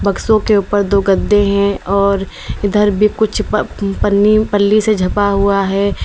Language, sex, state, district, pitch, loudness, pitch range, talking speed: Hindi, female, Uttar Pradesh, Lalitpur, 200 Hz, -14 LUFS, 200-210 Hz, 160 wpm